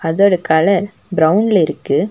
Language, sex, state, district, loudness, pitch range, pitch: Tamil, female, Tamil Nadu, Nilgiris, -14 LUFS, 165-205 Hz, 200 Hz